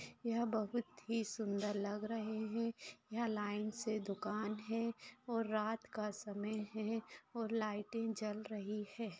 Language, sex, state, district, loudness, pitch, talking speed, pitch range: Hindi, female, Maharashtra, Sindhudurg, -42 LUFS, 215 Hz, 145 wpm, 210-225 Hz